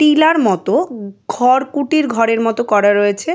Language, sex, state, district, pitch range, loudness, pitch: Bengali, female, West Bengal, Jalpaiguri, 215-300 Hz, -14 LUFS, 240 Hz